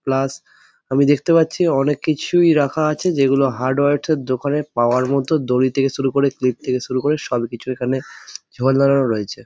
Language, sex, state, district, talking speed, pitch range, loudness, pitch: Bengali, male, West Bengal, Jhargram, 160 wpm, 130-145 Hz, -18 LUFS, 135 Hz